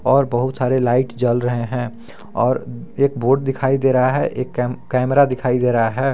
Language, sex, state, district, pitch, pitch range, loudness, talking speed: Hindi, male, Jharkhand, Garhwa, 125 Hz, 120-135 Hz, -18 LUFS, 205 wpm